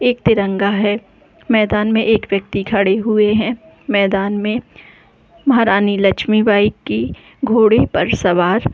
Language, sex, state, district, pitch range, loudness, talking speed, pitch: Hindi, female, Chhattisgarh, Bilaspur, 200-225 Hz, -15 LUFS, 130 wpm, 210 Hz